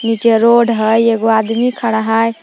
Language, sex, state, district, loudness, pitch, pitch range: Magahi, female, Jharkhand, Palamu, -13 LUFS, 225 Hz, 225-230 Hz